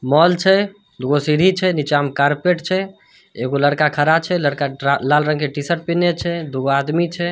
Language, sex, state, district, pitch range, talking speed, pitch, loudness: Hindi, male, Bihar, Samastipur, 145-175 Hz, 205 wpm, 150 Hz, -17 LUFS